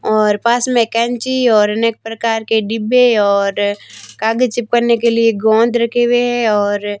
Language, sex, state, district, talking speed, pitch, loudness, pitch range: Hindi, female, Rajasthan, Barmer, 165 wpm, 225 Hz, -14 LUFS, 215-240 Hz